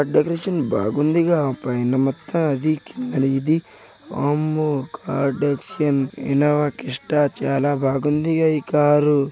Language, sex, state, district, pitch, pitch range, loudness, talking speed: Telugu, male, Telangana, Nalgonda, 145 Hz, 135-155 Hz, -20 LUFS, 105 wpm